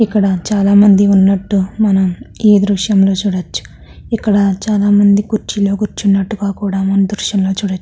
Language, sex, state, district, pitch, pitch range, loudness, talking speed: Telugu, female, Andhra Pradesh, Krishna, 200 Hz, 195-205 Hz, -13 LUFS, 155 wpm